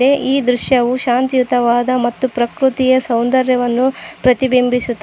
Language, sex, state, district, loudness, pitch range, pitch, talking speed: Kannada, female, Karnataka, Koppal, -15 LUFS, 245-260 Hz, 255 Hz, 85 wpm